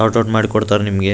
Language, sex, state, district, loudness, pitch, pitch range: Kannada, male, Karnataka, Raichur, -16 LUFS, 110 Hz, 105-110 Hz